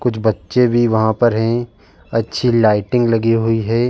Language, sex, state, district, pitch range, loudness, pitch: Hindi, male, Uttar Pradesh, Jalaun, 110-120 Hz, -16 LUFS, 115 Hz